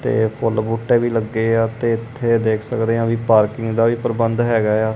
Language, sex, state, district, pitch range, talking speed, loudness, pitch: Punjabi, male, Punjab, Kapurthala, 110-115 Hz, 215 wpm, -18 LUFS, 115 Hz